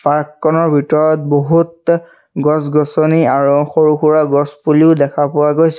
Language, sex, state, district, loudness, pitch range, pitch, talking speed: Assamese, male, Assam, Sonitpur, -13 LUFS, 145-160 Hz, 150 Hz, 135 wpm